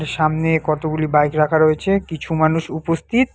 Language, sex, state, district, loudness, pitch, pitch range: Bengali, male, West Bengal, Alipurduar, -18 LUFS, 160 Hz, 155-165 Hz